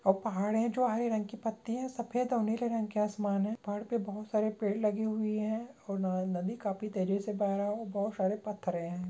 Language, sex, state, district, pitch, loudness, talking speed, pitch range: Hindi, female, Rajasthan, Churu, 215 Hz, -33 LUFS, 245 wpm, 200-225 Hz